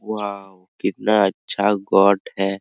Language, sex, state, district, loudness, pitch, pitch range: Hindi, male, Bihar, Araria, -20 LUFS, 100 Hz, 95-105 Hz